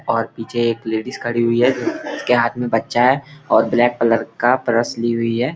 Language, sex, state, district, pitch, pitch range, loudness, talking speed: Hindi, male, Bihar, Gopalganj, 120 Hz, 115-125 Hz, -18 LUFS, 225 wpm